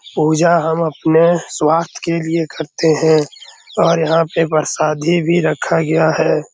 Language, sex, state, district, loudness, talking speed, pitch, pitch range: Hindi, male, Bihar, Araria, -15 LUFS, 145 wpm, 160 Hz, 160-165 Hz